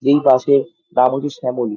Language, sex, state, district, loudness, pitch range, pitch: Bengali, male, West Bengal, Dakshin Dinajpur, -16 LUFS, 125-145 Hz, 135 Hz